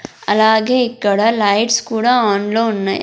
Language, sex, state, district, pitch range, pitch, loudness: Telugu, female, Andhra Pradesh, Sri Satya Sai, 205-230 Hz, 220 Hz, -15 LUFS